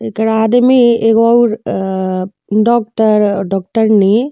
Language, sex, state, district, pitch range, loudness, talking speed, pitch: Bhojpuri, female, Uttar Pradesh, Deoria, 195-230 Hz, -12 LUFS, 110 wpm, 220 Hz